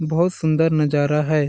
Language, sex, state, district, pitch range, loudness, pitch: Hindi, male, Chhattisgarh, Balrampur, 150-160 Hz, -19 LUFS, 155 Hz